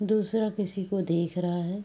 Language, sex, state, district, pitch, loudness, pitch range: Hindi, female, Bihar, Araria, 195 Hz, -27 LUFS, 175-210 Hz